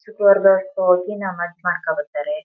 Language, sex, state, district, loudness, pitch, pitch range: Kannada, female, Karnataka, Mysore, -19 LUFS, 190 Hz, 175-200 Hz